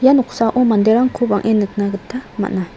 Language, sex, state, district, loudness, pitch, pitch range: Garo, female, Meghalaya, South Garo Hills, -16 LUFS, 225 Hz, 205-245 Hz